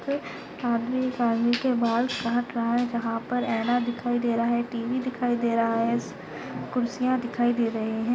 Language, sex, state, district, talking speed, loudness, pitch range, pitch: Hindi, female, Maharashtra, Chandrapur, 185 wpm, -26 LUFS, 230-245 Hz, 240 Hz